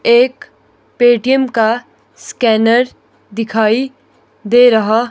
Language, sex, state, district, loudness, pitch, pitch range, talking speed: Hindi, female, Himachal Pradesh, Shimla, -13 LUFS, 235 Hz, 225-250 Hz, 80 wpm